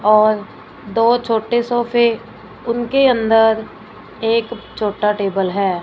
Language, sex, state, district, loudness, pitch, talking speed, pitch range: Hindi, female, Punjab, Fazilka, -17 LUFS, 220 Hz, 105 wpm, 215-235 Hz